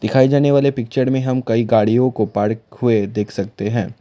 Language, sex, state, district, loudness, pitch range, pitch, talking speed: Hindi, male, Assam, Kamrup Metropolitan, -17 LUFS, 110-130 Hz, 115 Hz, 210 wpm